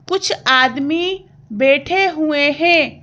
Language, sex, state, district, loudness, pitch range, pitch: Hindi, female, Madhya Pradesh, Bhopal, -15 LUFS, 275-360 Hz, 310 Hz